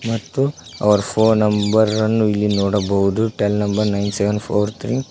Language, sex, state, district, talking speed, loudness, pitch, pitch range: Kannada, male, Karnataka, Koppal, 165 wpm, -18 LUFS, 105 Hz, 105-110 Hz